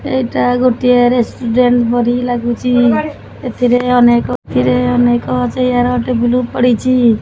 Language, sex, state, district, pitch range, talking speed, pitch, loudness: Odia, male, Odisha, Khordha, 235-250 Hz, 115 wpm, 245 Hz, -13 LUFS